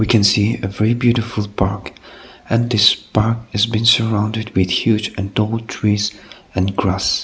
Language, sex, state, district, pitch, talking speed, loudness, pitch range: English, male, Nagaland, Kohima, 110 Hz, 165 wpm, -17 LUFS, 100-115 Hz